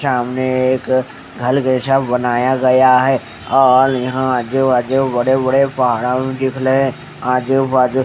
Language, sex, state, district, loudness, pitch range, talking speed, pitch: Hindi, male, Haryana, Charkhi Dadri, -15 LUFS, 125-130 Hz, 125 wpm, 130 Hz